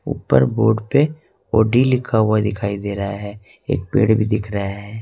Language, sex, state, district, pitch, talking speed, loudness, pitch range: Hindi, male, Jharkhand, Ranchi, 105 Hz, 190 wpm, -18 LUFS, 100-110 Hz